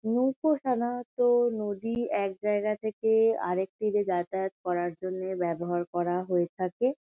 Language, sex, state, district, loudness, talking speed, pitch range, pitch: Bengali, female, West Bengal, Kolkata, -29 LUFS, 130 wpm, 180-235 Hz, 205 Hz